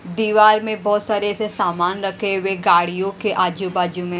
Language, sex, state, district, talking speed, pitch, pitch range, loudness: Hindi, female, Punjab, Pathankot, 170 wpm, 195 Hz, 180-210 Hz, -18 LUFS